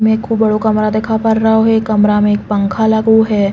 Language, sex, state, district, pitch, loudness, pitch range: Bundeli, female, Uttar Pradesh, Hamirpur, 220 Hz, -13 LUFS, 210-220 Hz